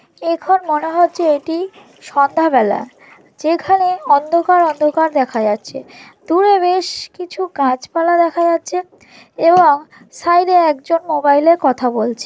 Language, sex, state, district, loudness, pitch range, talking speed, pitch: Bengali, female, West Bengal, North 24 Parganas, -15 LUFS, 300-360 Hz, 120 wpm, 335 Hz